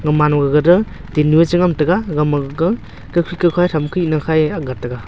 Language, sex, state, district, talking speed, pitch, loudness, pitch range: Wancho, male, Arunachal Pradesh, Longding, 225 wpm, 155 Hz, -16 LUFS, 150-175 Hz